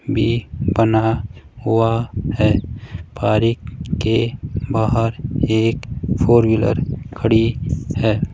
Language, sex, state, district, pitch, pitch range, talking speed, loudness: Hindi, male, Rajasthan, Jaipur, 115 Hz, 110-120 Hz, 85 wpm, -18 LUFS